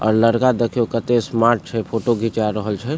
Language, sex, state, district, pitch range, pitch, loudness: Maithili, male, Bihar, Supaul, 110-120 Hz, 115 Hz, -19 LUFS